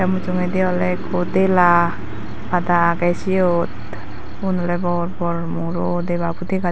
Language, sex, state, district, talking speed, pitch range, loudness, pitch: Chakma, female, Tripura, Dhalai, 115 wpm, 170-180 Hz, -19 LUFS, 175 Hz